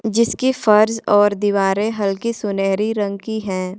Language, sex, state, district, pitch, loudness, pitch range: Hindi, female, Jharkhand, Ranchi, 205 Hz, -18 LUFS, 200-220 Hz